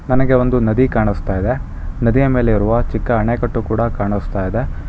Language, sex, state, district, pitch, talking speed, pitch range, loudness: Kannada, male, Karnataka, Bangalore, 115 Hz, 160 wpm, 100-125 Hz, -17 LUFS